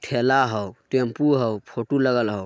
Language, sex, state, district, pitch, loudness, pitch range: Magahi, male, Bihar, Jamui, 125 Hz, -22 LUFS, 110-135 Hz